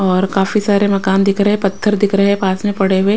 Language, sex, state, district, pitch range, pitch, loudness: Hindi, female, Maharashtra, Washim, 195-205 Hz, 200 Hz, -14 LUFS